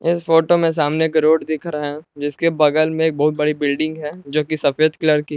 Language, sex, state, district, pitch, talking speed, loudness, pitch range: Hindi, male, Jharkhand, Palamu, 155 Hz, 255 wpm, -18 LUFS, 150-160 Hz